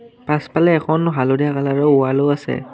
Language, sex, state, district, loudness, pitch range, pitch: Assamese, male, Assam, Kamrup Metropolitan, -17 LUFS, 140-160 Hz, 145 Hz